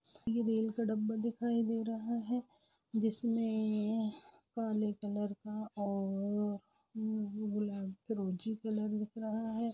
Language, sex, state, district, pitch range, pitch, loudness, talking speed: Hindi, female, Jharkhand, Jamtara, 210-225 Hz, 220 Hz, -37 LUFS, 125 wpm